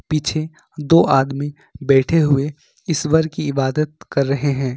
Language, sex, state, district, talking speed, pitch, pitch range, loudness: Hindi, male, Jharkhand, Ranchi, 140 wpm, 145 Hz, 140-155 Hz, -18 LUFS